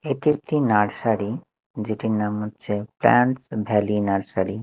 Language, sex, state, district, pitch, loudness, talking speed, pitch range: Bengali, male, Chhattisgarh, Raipur, 110 Hz, -23 LUFS, 130 wpm, 105-125 Hz